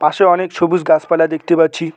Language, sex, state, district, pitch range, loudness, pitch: Bengali, male, West Bengal, Cooch Behar, 160-175 Hz, -14 LUFS, 165 Hz